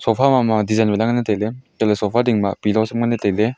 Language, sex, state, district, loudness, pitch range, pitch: Wancho, male, Arunachal Pradesh, Longding, -18 LUFS, 105-120 Hz, 110 Hz